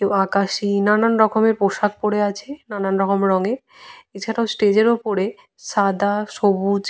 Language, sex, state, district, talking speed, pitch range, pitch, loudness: Bengali, female, Jharkhand, Jamtara, 120 wpm, 200-220 Hz, 205 Hz, -19 LUFS